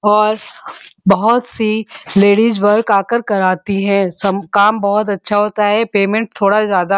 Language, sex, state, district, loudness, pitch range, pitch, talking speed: Hindi, female, Uttar Pradesh, Muzaffarnagar, -14 LUFS, 200-215 Hz, 205 Hz, 165 wpm